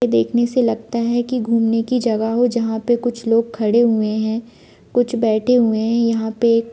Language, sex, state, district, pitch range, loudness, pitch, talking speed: Hindi, female, Jharkhand, Jamtara, 225-240 Hz, -18 LUFS, 230 Hz, 195 wpm